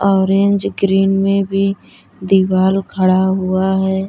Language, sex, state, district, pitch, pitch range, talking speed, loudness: Hindi, female, Bihar, Vaishali, 195 Hz, 190-195 Hz, 115 wpm, -15 LUFS